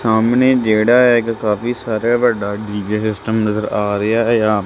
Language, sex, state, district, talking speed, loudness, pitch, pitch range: Punjabi, male, Punjab, Kapurthala, 155 wpm, -16 LUFS, 110 Hz, 105-120 Hz